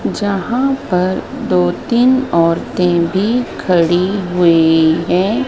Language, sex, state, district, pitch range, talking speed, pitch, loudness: Hindi, female, Madhya Pradesh, Dhar, 170-215 Hz, 100 wpm, 180 Hz, -14 LUFS